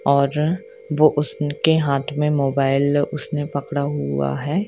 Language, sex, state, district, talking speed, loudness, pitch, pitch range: Hindi, female, Jharkhand, Sahebganj, 130 wpm, -20 LUFS, 145 Hz, 140-150 Hz